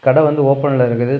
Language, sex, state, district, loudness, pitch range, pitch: Tamil, male, Tamil Nadu, Kanyakumari, -14 LUFS, 130-145 Hz, 135 Hz